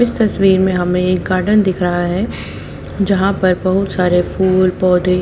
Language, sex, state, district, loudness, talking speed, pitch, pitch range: Hindi, female, Haryana, Jhajjar, -15 LUFS, 175 wpm, 185 Hz, 180-195 Hz